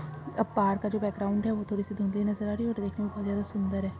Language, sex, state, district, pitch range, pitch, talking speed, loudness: Hindi, female, Maharashtra, Dhule, 200-210 Hz, 205 Hz, 240 wpm, -30 LUFS